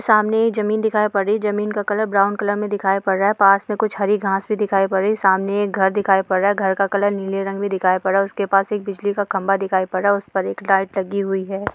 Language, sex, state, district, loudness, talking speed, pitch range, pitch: Hindi, female, Jharkhand, Sahebganj, -19 LUFS, 320 wpm, 195-210 Hz, 200 Hz